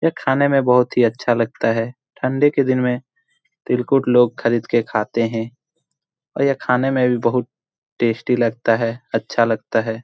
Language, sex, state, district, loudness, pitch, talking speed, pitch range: Hindi, male, Bihar, Jamui, -19 LUFS, 125 Hz, 180 wpm, 115-130 Hz